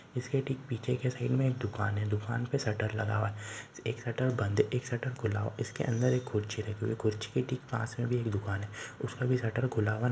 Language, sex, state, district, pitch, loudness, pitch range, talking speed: Marwari, male, Rajasthan, Nagaur, 115 Hz, -33 LUFS, 110-125 Hz, 260 wpm